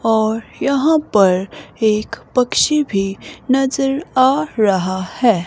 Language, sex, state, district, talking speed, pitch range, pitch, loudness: Hindi, female, Himachal Pradesh, Shimla, 110 wpm, 200-270 Hz, 230 Hz, -17 LUFS